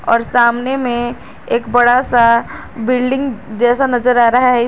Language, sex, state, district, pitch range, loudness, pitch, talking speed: Hindi, female, Jharkhand, Garhwa, 235-250 Hz, -14 LUFS, 245 Hz, 155 wpm